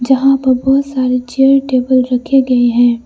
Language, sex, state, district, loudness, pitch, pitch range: Hindi, female, Arunachal Pradesh, Lower Dibang Valley, -12 LUFS, 255 Hz, 250-270 Hz